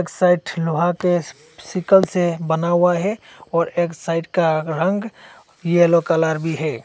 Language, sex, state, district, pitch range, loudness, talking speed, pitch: Hindi, male, Assam, Hailakandi, 160-180 Hz, -19 LUFS, 160 wpm, 170 Hz